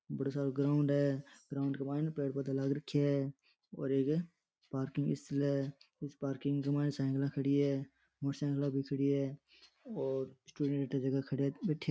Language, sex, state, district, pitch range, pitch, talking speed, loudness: Rajasthani, male, Rajasthan, Nagaur, 135-145 Hz, 140 Hz, 150 wpm, -36 LUFS